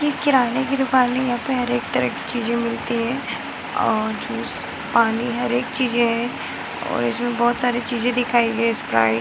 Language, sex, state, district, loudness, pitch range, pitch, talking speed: Hindi, female, Bihar, Muzaffarpur, -21 LUFS, 235-250 Hz, 240 Hz, 210 wpm